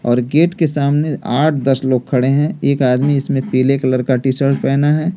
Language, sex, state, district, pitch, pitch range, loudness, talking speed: Hindi, male, Delhi, New Delhi, 135 Hz, 130-150 Hz, -15 LUFS, 210 wpm